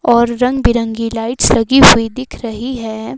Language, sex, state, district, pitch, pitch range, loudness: Hindi, female, Himachal Pradesh, Shimla, 230 Hz, 225-250 Hz, -12 LUFS